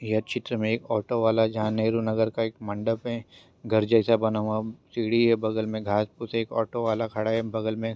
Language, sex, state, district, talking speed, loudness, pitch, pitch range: Hindi, male, Maharashtra, Chandrapur, 225 wpm, -26 LUFS, 110 Hz, 110-115 Hz